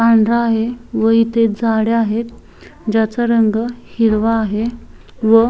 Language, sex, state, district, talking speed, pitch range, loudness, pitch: Marathi, female, Maharashtra, Chandrapur, 130 wpm, 225-235 Hz, -16 LUFS, 225 Hz